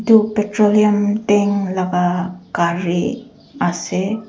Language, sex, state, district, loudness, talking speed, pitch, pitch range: Nagamese, female, Nagaland, Dimapur, -17 LUFS, 85 wpm, 200 Hz, 180-210 Hz